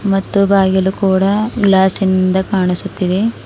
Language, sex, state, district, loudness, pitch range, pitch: Kannada, female, Karnataka, Bidar, -13 LUFS, 190-200 Hz, 190 Hz